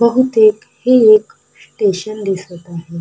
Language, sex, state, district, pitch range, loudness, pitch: Marathi, female, Maharashtra, Sindhudurg, 185-225 Hz, -13 LUFS, 215 Hz